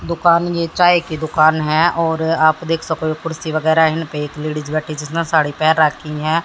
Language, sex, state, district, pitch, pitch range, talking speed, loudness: Hindi, female, Haryana, Jhajjar, 160 Hz, 155-165 Hz, 215 wpm, -17 LUFS